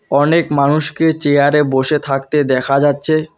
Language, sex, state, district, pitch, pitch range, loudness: Bengali, male, West Bengal, Alipurduar, 145 Hz, 140-155 Hz, -14 LUFS